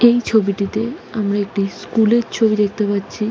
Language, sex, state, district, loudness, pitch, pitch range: Bengali, female, West Bengal, Jalpaiguri, -18 LUFS, 215 Hz, 205-225 Hz